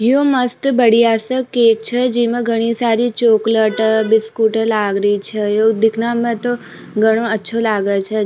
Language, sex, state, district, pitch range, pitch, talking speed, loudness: Rajasthani, female, Rajasthan, Nagaur, 220-240 Hz, 225 Hz, 150 wpm, -15 LUFS